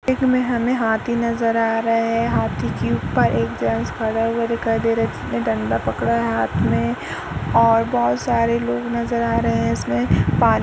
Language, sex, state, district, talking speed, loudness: Hindi, female, Uttar Pradesh, Jalaun, 200 wpm, -20 LUFS